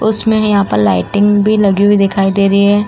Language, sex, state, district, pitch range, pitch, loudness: Hindi, female, Uttar Pradesh, Jalaun, 200-210 Hz, 205 Hz, -11 LUFS